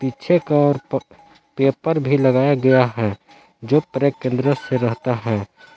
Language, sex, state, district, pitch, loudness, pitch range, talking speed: Hindi, male, Jharkhand, Palamu, 135 Hz, -19 LUFS, 125-145 Hz, 145 wpm